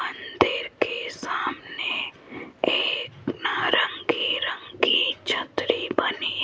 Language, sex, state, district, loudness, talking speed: Hindi, female, Rajasthan, Jaipur, -25 LUFS, 95 wpm